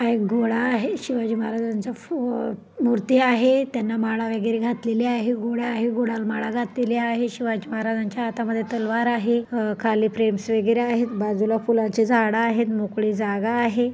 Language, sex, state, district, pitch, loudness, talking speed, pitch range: Marathi, female, Maharashtra, Pune, 230 Hz, -23 LUFS, 160 wpm, 225-240 Hz